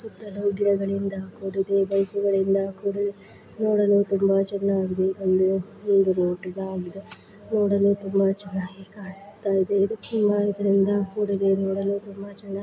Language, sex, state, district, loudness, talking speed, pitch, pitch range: Kannada, female, Karnataka, Bijapur, -24 LUFS, 130 wpm, 195 Hz, 195-200 Hz